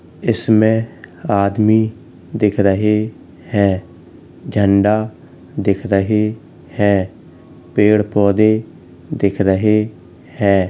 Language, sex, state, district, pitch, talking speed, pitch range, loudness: Hindi, male, Uttar Pradesh, Hamirpur, 105 Hz, 75 wpm, 100-110 Hz, -16 LUFS